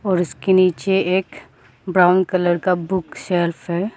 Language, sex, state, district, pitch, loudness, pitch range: Hindi, female, Arunachal Pradesh, Papum Pare, 180 Hz, -18 LUFS, 175-190 Hz